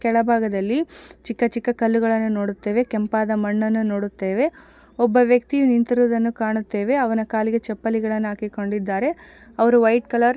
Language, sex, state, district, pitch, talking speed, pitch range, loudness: Kannada, female, Karnataka, Gulbarga, 230 Hz, 115 wpm, 215-245 Hz, -21 LUFS